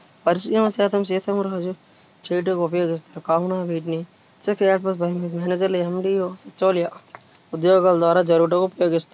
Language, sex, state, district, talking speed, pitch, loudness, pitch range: Telugu, male, Andhra Pradesh, Srikakulam, 100 wpm, 180 Hz, -21 LUFS, 170-190 Hz